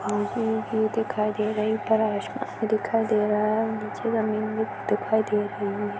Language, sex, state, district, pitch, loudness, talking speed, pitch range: Hindi, female, Chhattisgarh, Jashpur, 215 Hz, -26 LUFS, 200 wpm, 210-220 Hz